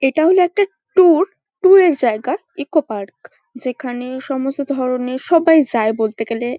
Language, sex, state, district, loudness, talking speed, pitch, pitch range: Bengali, female, West Bengal, Kolkata, -16 LUFS, 155 wpm, 270 Hz, 250-340 Hz